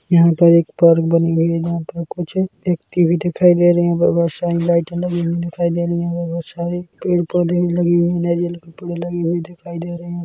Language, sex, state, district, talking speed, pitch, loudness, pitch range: Hindi, male, Chhattisgarh, Bilaspur, 245 wpm, 170 Hz, -17 LUFS, 170-175 Hz